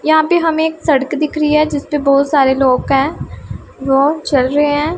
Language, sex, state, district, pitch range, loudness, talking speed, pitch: Hindi, female, Punjab, Pathankot, 275-310 Hz, -14 LUFS, 205 wpm, 295 Hz